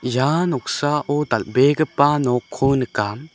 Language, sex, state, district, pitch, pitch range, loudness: Garo, male, Meghalaya, South Garo Hills, 140 Hz, 125-150 Hz, -19 LUFS